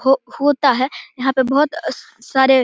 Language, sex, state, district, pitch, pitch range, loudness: Hindi, male, Bihar, Begusarai, 270 Hz, 260-290 Hz, -18 LUFS